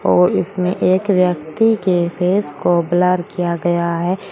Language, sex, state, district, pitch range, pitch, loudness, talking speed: Hindi, female, Uttar Pradesh, Shamli, 170-185 Hz, 180 Hz, -17 LUFS, 150 wpm